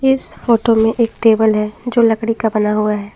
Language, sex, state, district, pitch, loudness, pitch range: Hindi, female, Jharkhand, Garhwa, 225 Hz, -15 LUFS, 215-235 Hz